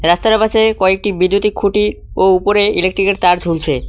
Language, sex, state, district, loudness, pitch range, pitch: Bengali, male, West Bengal, Cooch Behar, -14 LUFS, 185-210 Hz, 195 Hz